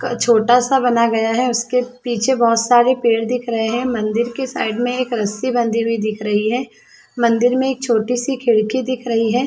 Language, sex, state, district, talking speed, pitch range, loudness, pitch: Hindi, female, Chhattisgarh, Sarguja, 215 wpm, 230-250 Hz, -17 LUFS, 240 Hz